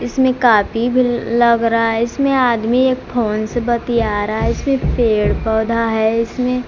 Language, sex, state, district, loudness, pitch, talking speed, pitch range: Hindi, female, Bihar, Kaimur, -16 LUFS, 235 Hz, 170 wpm, 225-250 Hz